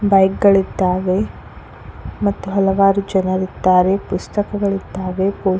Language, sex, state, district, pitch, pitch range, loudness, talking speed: Kannada, female, Karnataka, Koppal, 195 Hz, 185-200 Hz, -17 LUFS, 85 wpm